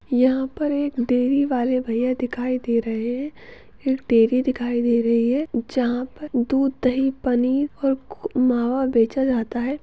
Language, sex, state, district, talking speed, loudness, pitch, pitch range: Hindi, female, Chhattisgarh, Bastar, 165 wpm, -22 LUFS, 255 Hz, 240-270 Hz